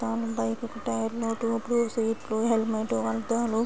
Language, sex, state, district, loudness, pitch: Telugu, female, Andhra Pradesh, Srikakulam, -28 LUFS, 225 Hz